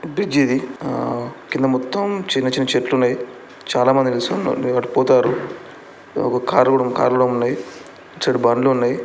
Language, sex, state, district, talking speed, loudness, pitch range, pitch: Telugu, male, Andhra Pradesh, Chittoor, 145 wpm, -18 LUFS, 120-135 Hz, 125 Hz